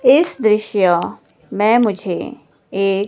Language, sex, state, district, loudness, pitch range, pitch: Hindi, female, Himachal Pradesh, Shimla, -16 LUFS, 195-235 Hz, 210 Hz